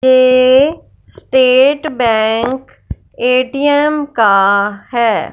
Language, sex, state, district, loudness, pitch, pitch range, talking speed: Hindi, female, Punjab, Fazilka, -12 LUFS, 255 Hz, 225-275 Hz, 65 wpm